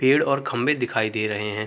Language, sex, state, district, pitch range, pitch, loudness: Hindi, male, Uttar Pradesh, Jalaun, 105-135 Hz, 110 Hz, -23 LUFS